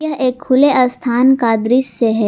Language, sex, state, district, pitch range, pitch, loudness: Hindi, female, Jharkhand, Garhwa, 240-265 Hz, 255 Hz, -14 LUFS